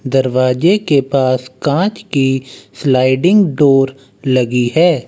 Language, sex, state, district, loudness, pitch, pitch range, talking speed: Hindi, male, Uttar Pradesh, Lucknow, -14 LUFS, 135 Hz, 130-150 Hz, 105 wpm